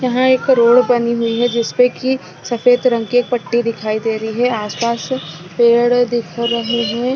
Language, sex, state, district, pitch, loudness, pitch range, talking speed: Hindi, female, Chhattisgarh, Balrampur, 235 Hz, -15 LUFS, 230-245 Hz, 190 wpm